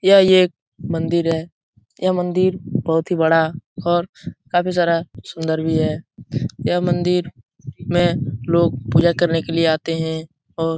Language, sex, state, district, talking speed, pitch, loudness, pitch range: Hindi, male, Bihar, Jahanabad, 150 wpm, 165 Hz, -19 LUFS, 160-175 Hz